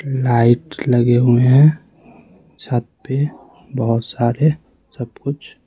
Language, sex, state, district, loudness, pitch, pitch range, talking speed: Hindi, male, Bihar, West Champaran, -16 LUFS, 125 Hz, 120-140 Hz, 115 wpm